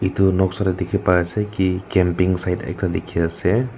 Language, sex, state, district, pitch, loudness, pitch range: Nagamese, male, Nagaland, Kohima, 95 Hz, -20 LUFS, 90-95 Hz